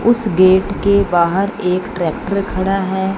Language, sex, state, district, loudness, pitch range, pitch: Hindi, female, Punjab, Fazilka, -15 LUFS, 185-200 Hz, 190 Hz